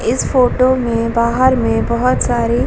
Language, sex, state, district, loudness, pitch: Hindi, female, Bihar, Vaishali, -14 LUFS, 235 Hz